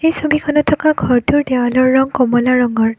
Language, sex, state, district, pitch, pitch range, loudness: Assamese, female, Assam, Kamrup Metropolitan, 260 Hz, 245-300 Hz, -14 LUFS